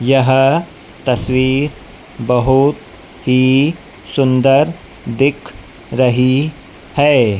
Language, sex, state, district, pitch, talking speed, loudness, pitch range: Hindi, female, Madhya Pradesh, Dhar, 130 Hz, 65 wpm, -14 LUFS, 125-140 Hz